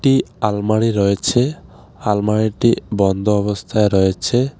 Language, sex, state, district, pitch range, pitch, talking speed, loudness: Bengali, male, West Bengal, Alipurduar, 100-115 Hz, 105 Hz, 90 wpm, -17 LUFS